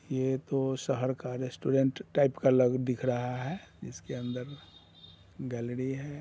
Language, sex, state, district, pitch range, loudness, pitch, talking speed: Hindi, female, Bihar, Muzaffarpur, 125-135 Hz, -31 LUFS, 130 Hz, 155 wpm